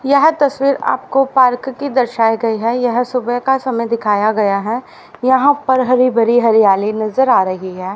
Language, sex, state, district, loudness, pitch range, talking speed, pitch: Hindi, female, Haryana, Rohtak, -14 LUFS, 220-265 Hz, 180 wpm, 245 Hz